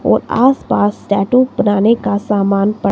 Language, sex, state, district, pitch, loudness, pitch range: Hindi, female, Himachal Pradesh, Shimla, 205 Hz, -14 LUFS, 200-235 Hz